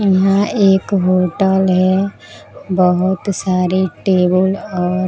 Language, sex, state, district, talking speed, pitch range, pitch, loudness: Hindi, female, Bihar, Katihar, 95 wpm, 185-195 Hz, 190 Hz, -15 LUFS